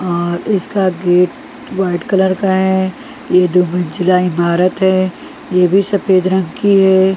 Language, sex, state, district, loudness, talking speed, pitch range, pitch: Hindi, female, Punjab, Pathankot, -14 LUFS, 140 wpm, 180-190 Hz, 185 Hz